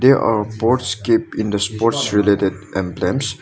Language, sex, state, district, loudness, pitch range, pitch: English, male, Nagaland, Dimapur, -18 LUFS, 100-115 Hz, 110 Hz